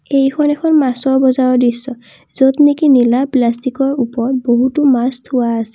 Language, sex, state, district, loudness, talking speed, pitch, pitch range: Assamese, female, Assam, Kamrup Metropolitan, -13 LUFS, 145 wpm, 260 Hz, 245-275 Hz